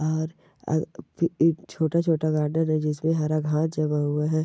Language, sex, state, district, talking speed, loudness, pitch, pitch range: Hindi, female, Rajasthan, Churu, 200 wpm, -25 LUFS, 155 Hz, 155-160 Hz